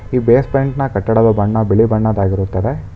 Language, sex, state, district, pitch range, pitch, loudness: Kannada, male, Karnataka, Bangalore, 100-125 Hz, 110 Hz, -14 LUFS